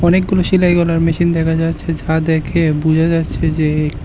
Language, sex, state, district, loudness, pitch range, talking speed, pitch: Bengali, male, Tripura, West Tripura, -15 LUFS, 160-170 Hz, 165 wpm, 165 Hz